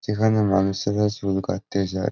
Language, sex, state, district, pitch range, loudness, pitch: Bengali, male, West Bengal, Jhargram, 95-105 Hz, -23 LUFS, 100 Hz